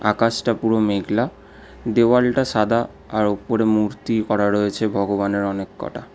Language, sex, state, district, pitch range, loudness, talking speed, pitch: Bengali, male, West Bengal, Alipurduar, 105-115 Hz, -20 LUFS, 115 wpm, 110 Hz